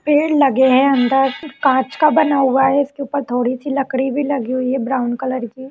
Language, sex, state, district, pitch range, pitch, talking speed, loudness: Hindi, female, Uttarakhand, Uttarkashi, 260-280 Hz, 270 Hz, 230 wpm, -16 LUFS